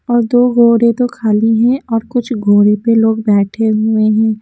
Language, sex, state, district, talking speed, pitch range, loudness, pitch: Hindi, female, Haryana, Jhajjar, 190 wpm, 215-240 Hz, -12 LUFS, 225 Hz